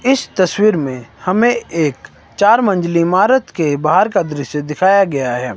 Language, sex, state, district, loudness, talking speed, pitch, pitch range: Hindi, male, Himachal Pradesh, Shimla, -15 LUFS, 160 wpm, 170 Hz, 145-200 Hz